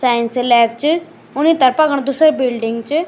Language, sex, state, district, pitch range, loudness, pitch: Garhwali, male, Uttarakhand, Tehri Garhwal, 240-310 Hz, -15 LUFS, 260 Hz